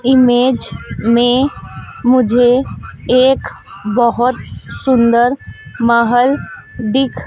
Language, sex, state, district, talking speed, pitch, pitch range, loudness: Hindi, female, Madhya Pradesh, Dhar, 65 wpm, 245 Hz, 235-255 Hz, -13 LUFS